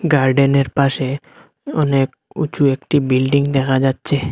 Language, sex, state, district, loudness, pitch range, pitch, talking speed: Bengali, male, Assam, Hailakandi, -17 LUFS, 135-145 Hz, 140 Hz, 110 wpm